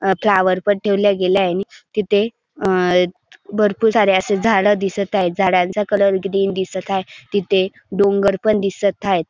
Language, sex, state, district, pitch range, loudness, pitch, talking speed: Marathi, male, Maharashtra, Dhule, 190-205 Hz, -17 LUFS, 195 Hz, 150 wpm